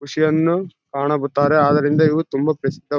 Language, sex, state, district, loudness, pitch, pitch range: Kannada, male, Karnataka, Bellary, -18 LUFS, 150 Hz, 145-155 Hz